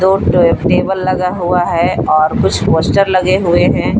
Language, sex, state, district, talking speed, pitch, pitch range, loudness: Hindi, female, Jharkhand, Palamu, 165 wpm, 180 Hz, 175-185 Hz, -12 LUFS